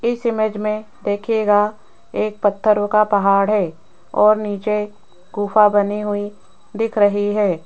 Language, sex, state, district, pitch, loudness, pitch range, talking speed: Hindi, female, Rajasthan, Jaipur, 210 Hz, -18 LUFS, 205-215 Hz, 135 wpm